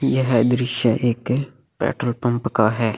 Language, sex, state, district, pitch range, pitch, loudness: Hindi, male, Chhattisgarh, Kabirdham, 115-125 Hz, 120 Hz, -20 LUFS